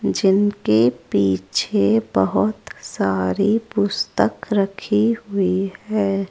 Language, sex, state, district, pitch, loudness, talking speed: Hindi, female, Rajasthan, Jaipur, 195 Hz, -20 LUFS, 75 wpm